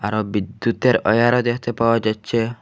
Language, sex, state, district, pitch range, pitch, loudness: Bengali, male, Assam, Hailakandi, 110-120 Hz, 115 Hz, -19 LUFS